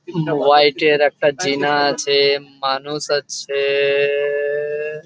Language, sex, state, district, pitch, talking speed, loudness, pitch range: Bengali, male, West Bengal, Jhargram, 145 Hz, 95 wpm, -17 LUFS, 140-150 Hz